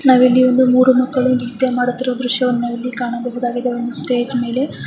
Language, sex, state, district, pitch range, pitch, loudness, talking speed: Kannada, female, Karnataka, Raichur, 245-255 Hz, 250 Hz, -16 LUFS, 185 wpm